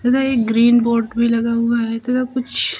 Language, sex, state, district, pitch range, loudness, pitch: Hindi, female, Uttar Pradesh, Lucknow, 230-250 Hz, -17 LUFS, 235 Hz